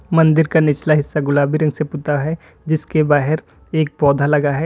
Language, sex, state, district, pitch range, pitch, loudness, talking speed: Hindi, male, Uttar Pradesh, Lalitpur, 145-160 Hz, 155 Hz, -17 LUFS, 195 wpm